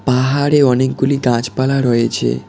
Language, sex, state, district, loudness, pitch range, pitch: Bengali, male, West Bengal, Cooch Behar, -15 LUFS, 120-135 Hz, 130 Hz